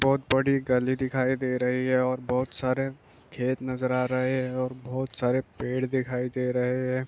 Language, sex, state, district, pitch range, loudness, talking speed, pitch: Hindi, male, Bihar, East Champaran, 125-130 Hz, -27 LUFS, 205 wpm, 130 Hz